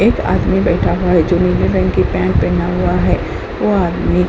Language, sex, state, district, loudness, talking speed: Hindi, female, Uttar Pradesh, Hamirpur, -15 LUFS, 225 wpm